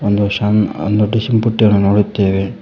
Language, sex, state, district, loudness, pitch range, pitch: Kannada, male, Karnataka, Koppal, -14 LUFS, 100-105 Hz, 105 Hz